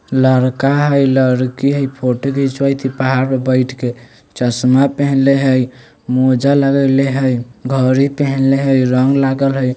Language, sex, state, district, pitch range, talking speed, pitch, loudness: Bajjika, male, Bihar, Vaishali, 130-135 Hz, 145 wpm, 135 Hz, -14 LUFS